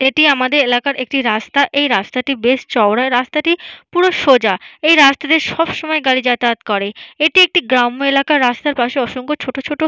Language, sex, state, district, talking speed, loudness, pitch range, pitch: Bengali, female, West Bengal, Dakshin Dinajpur, 190 wpm, -14 LUFS, 245-300 Hz, 270 Hz